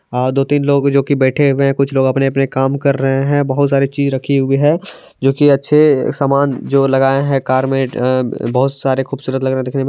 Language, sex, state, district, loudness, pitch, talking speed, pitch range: Hindi, male, Bihar, Madhepura, -14 LUFS, 135 Hz, 235 wpm, 135-140 Hz